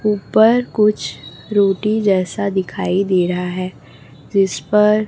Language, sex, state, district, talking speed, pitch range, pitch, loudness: Hindi, female, Chhattisgarh, Raipur, 120 wpm, 180-210 Hz, 195 Hz, -17 LUFS